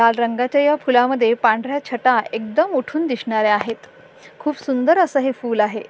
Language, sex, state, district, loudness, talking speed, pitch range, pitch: Marathi, female, Maharashtra, Sindhudurg, -18 LUFS, 165 wpm, 230-295 Hz, 255 Hz